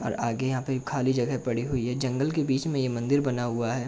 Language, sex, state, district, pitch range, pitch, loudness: Hindi, male, Uttar Pradesh, Jalaun, 120-135 Hz, 130 Hz, -27 LUFS